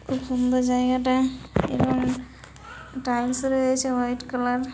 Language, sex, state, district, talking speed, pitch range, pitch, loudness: Bengali, female, West Bengal, Malda, 115 wpm, 245-260 Hz, 250 Hz, -24 LUFS